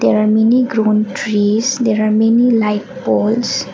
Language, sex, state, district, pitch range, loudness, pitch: English, female, Assam, Kamrup Metropolitan, 215-235 Hz, -14 LUFS, 220 Hz